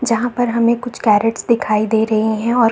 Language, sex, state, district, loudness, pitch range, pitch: Hindi, female, Bihar, Saharsa, -16 LUFS, 220-240 Hz, 230 Hz